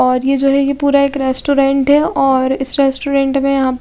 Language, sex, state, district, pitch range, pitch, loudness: Hindi, female, Chhattisgarh, Raipur, 265-280 Hz, 275 Hz, -13 LUFS